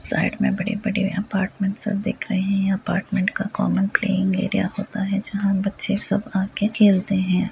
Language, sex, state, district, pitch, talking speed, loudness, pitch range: Hindi, female, Uttar Pradesh, Deoria, 200 Hz, 165 wpm, -21 LUFS, 195-205 Hz